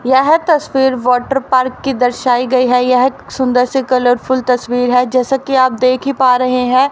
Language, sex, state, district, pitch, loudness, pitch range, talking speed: Hindi, female, Haryana, Rohtak, 255 Hz, -13 LUFS, 250-265 Hz, 210 wpm